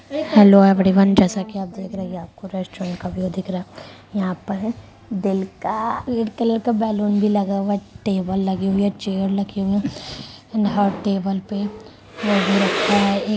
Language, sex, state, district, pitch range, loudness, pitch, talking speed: Hindi, female, Uttar Pradesh, Muzaffarnagar, 190-210 Hz, -20 LUFS, 200 Hz, 195 wpm